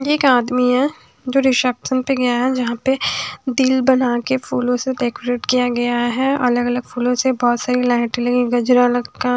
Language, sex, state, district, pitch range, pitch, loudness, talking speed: Hindi, female, Haryana, Charkhi Dadri, 245-260 Hz, 250 Hz, -17 LUFS, 180 wpm